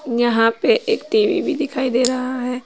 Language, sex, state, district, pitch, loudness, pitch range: Hindi, female, Uttar Pradesh, Saharanpur, 255 Hz, -18 LUFS, 250-365 Hz